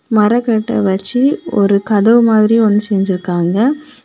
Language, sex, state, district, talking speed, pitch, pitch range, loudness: Tamil, female, Tamil Nadu, Kanyakumari, 105 wpm, 215 Hz, 200-235 Hz, -13 LUFS